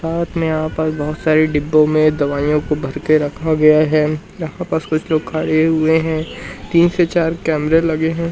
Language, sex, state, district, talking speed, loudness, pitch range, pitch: Hindi, male, Madhya Pradesh, Umaria, 200 wpm, -16 LUFS, 155-165 Hz, 155 Hz